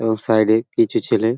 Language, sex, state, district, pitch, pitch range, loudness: Bengali, male, West Bengal, Paschim Medinipur, 115 Hz, 110-155 Hz, -18 LUFS